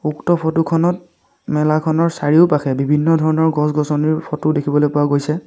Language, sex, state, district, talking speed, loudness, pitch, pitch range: Assamese, male, Assam, Sonitpur, 130 wpm, -16 LUFS, 155 Hz, 150-165 Hz